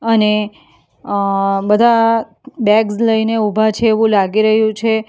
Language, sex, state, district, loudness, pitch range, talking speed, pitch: Gujarati, female, Gujarat, Valsad, -14 LUFS, 210-225 Hz, 130 wpm, 220 Hz